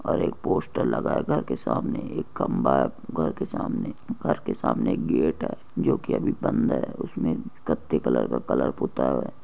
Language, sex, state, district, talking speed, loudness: Hindi, male, Andhra Pradesh, Krishna, 190 wpm, -26 LUFS